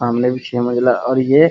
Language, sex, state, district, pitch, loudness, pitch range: Hindi, male, Bihar, Muzaffarpur, 125 Hz, -16 LUFS, 120-130 Hz